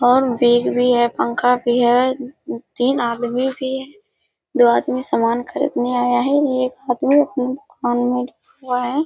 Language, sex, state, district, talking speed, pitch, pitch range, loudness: Hindi, female, Bihar, Kishanganj, 125 wpm, 250 Hz, 245-265 Hz, -18 LUFS